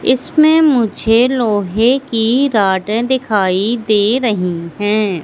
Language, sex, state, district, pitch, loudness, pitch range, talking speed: Hindi, female, Madhya Pradesh, Katni, 225 Hz, -14 LUFS, 205-250 Hz, 105 wpm